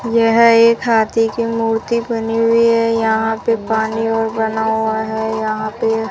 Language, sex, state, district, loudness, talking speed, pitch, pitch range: Hindi, female, Rajasthan, Bikaner, -16 LUFS, 165 wpm, 225 Hz, 220-230 Hz